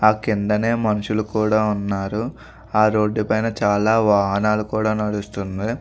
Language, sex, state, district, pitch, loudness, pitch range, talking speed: Telugu, male, Andhra Pradesh, Visakhapatnam, 110 Hz, -20 LUFS, 105-110 Hz, 135 wpm